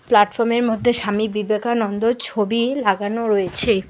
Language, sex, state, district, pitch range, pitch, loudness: Bengali, female, West Bengal, Alipurduar, 205-235 Hz, 220 Hz, -19 LUFS